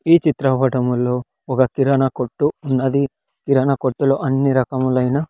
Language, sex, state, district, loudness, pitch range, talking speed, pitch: Telugu, male, Andhra Pradesh, Sri Satya Sai, -18 LUFS, 130-140 Hz, 115 wpm, 135 Hz